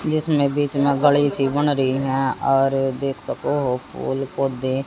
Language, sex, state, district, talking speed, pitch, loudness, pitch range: Hindi, female, Haryana, Jhajjar, 185 wpm, 135 Hz, -21 LUFS, 135-145 Hz